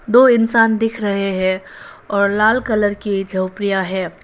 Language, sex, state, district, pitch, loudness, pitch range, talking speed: Hindi, female, Arunachal Pradesh, Papum Pare, 205 Hz, -16 LUFS, 195-225 Hz, 155 wpm